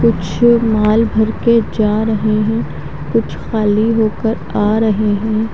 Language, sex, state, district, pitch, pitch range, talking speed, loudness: Hindi, female, Haryana, Charkhi Dadri, 220 Hz, 215-225 Hz, 140 wpm, -15 LUFS